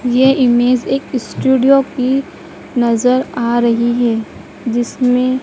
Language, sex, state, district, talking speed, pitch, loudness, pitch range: Hindi, female, Madhya Pradesh, Dhar, 110 wpm, 250 Hz, -14 LUFS, 240-260 Hz